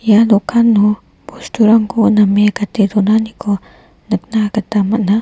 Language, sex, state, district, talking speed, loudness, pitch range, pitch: Garo, female, Meghalaya, West Garo Hills, 105 wpm, -13 LUFS, 205-220 Hz, 215 Hz